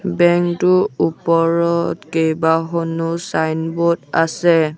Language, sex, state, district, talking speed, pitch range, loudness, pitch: Assamese, male, Assam, Sonitpur, 65 wpm, 165-170 Hz, -17 LUFS, 165 Hz